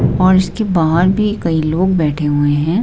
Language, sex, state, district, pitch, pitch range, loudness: Hindi, female, Himachal Pradesh, Shimla, 170 Hz, 155-190 Hz, -14 LUFS